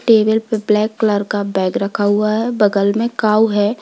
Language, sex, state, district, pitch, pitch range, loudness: Hindi, female, Uttar Pradesh, Lalitpur, 215 Hz, 205-220 Hz, -16 LUFS